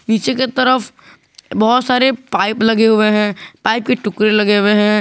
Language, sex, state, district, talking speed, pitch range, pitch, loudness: Hindi, male, Jharkhand, Garhwa, 180 wpm, 210-250 Hz, 220 Hz, -14 LUFS